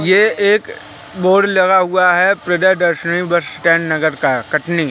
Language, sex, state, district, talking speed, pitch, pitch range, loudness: Hindi, male, Madhya Pradesh, Katni, 160 wpm, 180 Hz, 170-190 Hz, -14 LUFS